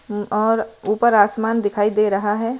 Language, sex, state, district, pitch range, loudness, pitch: Hindi, female, Himachal Pradesh, Shimla, 205-225 Hz, -19 LUFS, 215 Hz